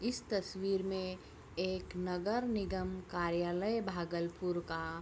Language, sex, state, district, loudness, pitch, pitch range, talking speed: Hindi, female, Bihar, Bhagalpur, -38 LUFS, 185 Hz, 175-195 Hz, 120 wpm